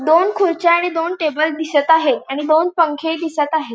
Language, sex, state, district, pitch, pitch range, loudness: Marathi, female, Goa, North and South Goa, 320 Hz, 310-335 Hz, -16 LUFS